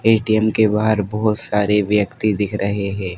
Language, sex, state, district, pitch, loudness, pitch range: Hindi, male, Madhya Pradesh, Dhar, 105 Hz, -18 LUFS, 100-110 Hz